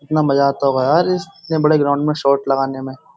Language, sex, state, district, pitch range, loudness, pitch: Hindi, male, Uttar Pradesh, Jyotiba Phule Nagar, 135-155 Hz, -17 LUFS, 140 Hz